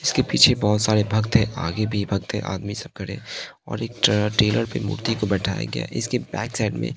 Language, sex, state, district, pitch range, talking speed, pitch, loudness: Hindi, male, Bihar, Katihar, 100-110 Hz, 215 wpm, 105 Hz, -22 LUFS